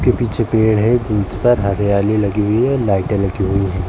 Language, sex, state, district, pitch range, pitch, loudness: Hindi, male, Uttar Pradesh, Jalaun, 100-115 Hz, 105 Hz, -16 LUFS